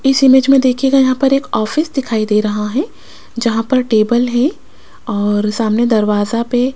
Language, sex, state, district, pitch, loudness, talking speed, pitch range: Hindi, female, Rajasthan, Jaipur, 240 Hz, -14 LUFS, 185 wpm, 215-270 Hz